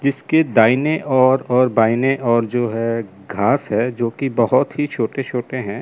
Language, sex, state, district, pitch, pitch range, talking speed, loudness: Hindi, male, Chandigarh, Chandigarh, 125 Hz, 115-135 Hz, 175 wpm, -18 LUFS